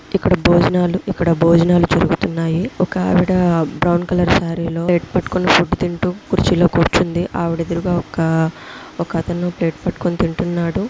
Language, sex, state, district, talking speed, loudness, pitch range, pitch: Telugu, female, Andhra Pradesh, Visakhapatnam, 130 wpm, -17 LUFS, 170-180 Hz, 175 Hz